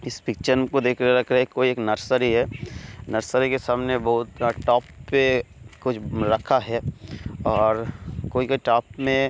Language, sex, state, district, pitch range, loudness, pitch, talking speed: Hindi, male, Bihar, Kishanganj, 110-130 Hz, -23 LUFS, 120 Hz, 155 wpm